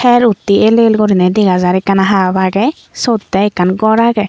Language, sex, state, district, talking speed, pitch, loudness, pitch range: Chakma, female, Tripura, Unakoti, 210 wpm, 205 Hz, -11 LUFS, 190-225 Hz